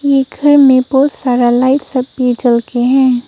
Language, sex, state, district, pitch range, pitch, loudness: Hindi, female, Arunachal Pradesh, Papum Pare, 245-270 Hz, 260 Hz, -11 LUFS